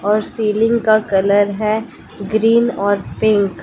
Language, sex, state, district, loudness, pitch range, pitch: Hindi, female, Bihar, West Champaran, -16 LUFS, 200-220 Hz, 215 Hz